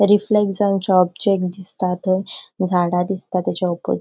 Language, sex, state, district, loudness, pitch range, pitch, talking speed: Konkani, female, Goa, North and South Goa, -19 LUFS, 180-200 Hz, 185 Hz, 150 wpm